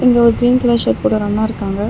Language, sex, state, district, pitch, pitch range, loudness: Tamil, female, Tamil Nadu, Chennai, 230 Hz, 210-240 Hz, -15 LUFS